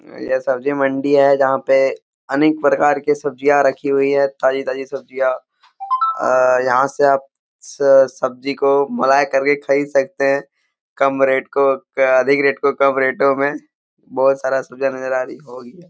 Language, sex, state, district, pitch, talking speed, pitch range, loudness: Hindi, male, Jharkhand, Jamtara, 140 Hz, 185 wpm, 135-140 Hz, -16 LUFS